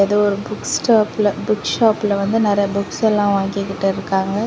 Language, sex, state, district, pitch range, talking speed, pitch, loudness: Tamil, female, Tamil Nadu, Kanyakumari, 200-215 Hz, 160 wpm, 205 Hz, -18 LUFS